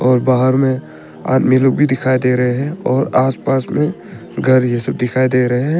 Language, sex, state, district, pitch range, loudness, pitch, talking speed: Hindi, male, Arunachal Pradesh, Papum Pare, 125-130 Hz, -15 LUFS, 130 Hz, 215 wpm